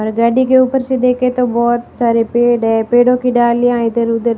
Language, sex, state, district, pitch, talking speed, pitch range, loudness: Hindi, female, Rajasthan, Barmer, 240 Hz, 235 wpm, 235-250 Hz, -13 LUFS